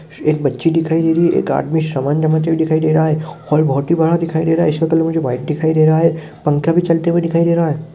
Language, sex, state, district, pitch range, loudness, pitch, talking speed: Hindi, male, Rajasthan, Churu, 155-165 Hz, -15 LUFS, 160 Hz, 295 wpm